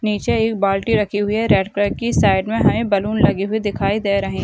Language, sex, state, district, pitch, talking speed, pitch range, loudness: Hindi, female, Bihar, Madhepura, 205 Hz, 255 wpm, 200-220 Hz, -18 LUFS